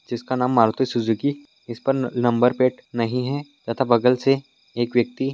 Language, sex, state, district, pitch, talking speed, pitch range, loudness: Hindi, male, Jharkhand, Jamtara, 125 Hz, 170 wpm, 120-135 Hz, -21 LUFS